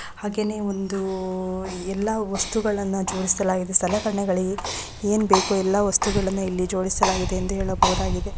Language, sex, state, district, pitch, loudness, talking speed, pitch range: Kannada, female, Karnataka, Gulbarga, 195 Hz, -23 LUFS, 105 wpm, 190-205 Hz